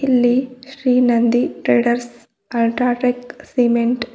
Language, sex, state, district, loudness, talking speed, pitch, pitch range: Kannada, female, Karnataka, Bidar, -17 LUFS, 100 wpm, 245 Hz, 235-250 Hz